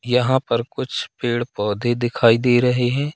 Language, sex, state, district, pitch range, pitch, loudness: Hindi, male, Madhya Pradesh, Katni, 120-125 Hz, 120 Hz, -19 LUFS